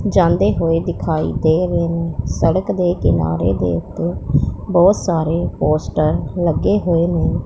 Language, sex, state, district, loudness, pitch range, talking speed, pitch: Hindi, male, Punjab, Pathankot, -17 LUFS, 155-175 Hz, 130 wpm, 165 Hz